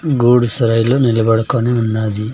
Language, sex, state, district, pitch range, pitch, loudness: Telugu, male, Andhra Pradesh, Sri Satya Sai, 115-125 Hz, 115 Hz, -14 LUFS